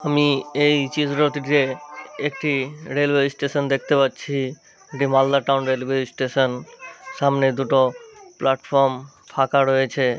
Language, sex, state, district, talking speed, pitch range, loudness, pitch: Bengali, male, West Bengal, Malda, 105 wpm, 135-145 Hz, -21 LUFS, 140 Hz